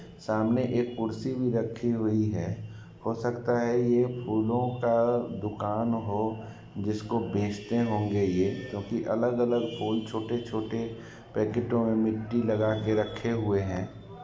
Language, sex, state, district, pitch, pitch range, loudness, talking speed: Hindi, male, Bihar, Sitamarhi, 115 Hz, 105-120 Hz, -29 LUFS, 125 wpm